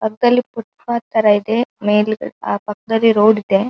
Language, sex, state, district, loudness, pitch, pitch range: Kannada, female, Karnataka, Dharwad, -16 LUFS, 220 Hz, 210-235 Hz